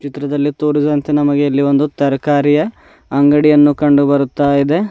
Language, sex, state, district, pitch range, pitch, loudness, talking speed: Kannada, male, Karnataka, Bidar, 140-150 Hz, 145 Hz, -13 LUFS, 120 wpm